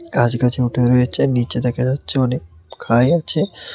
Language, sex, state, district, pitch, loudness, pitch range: Bengali, male, Tripura, West Tripura, 125 Hz, -18 LUFS, 120-135 Hz